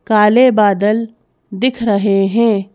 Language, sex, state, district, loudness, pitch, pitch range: Hindi, female, Madhya Pradesh, Bhopal, -13 LUFS, 215 Hz, 200-230 Hz